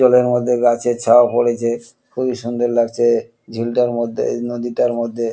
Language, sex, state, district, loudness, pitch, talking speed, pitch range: Bengali, male, West Bengal, Kolkata, -17 LUFS, 120 Hz, 155 wpm, 115-120 Hz